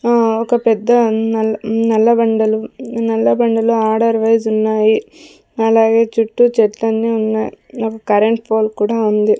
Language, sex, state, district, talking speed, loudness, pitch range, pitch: Telugu, female, Andhra Pradesh, Sri Satya Sai, 130 wpm, -15 LUFS, 220-230 Hz, 225 Hz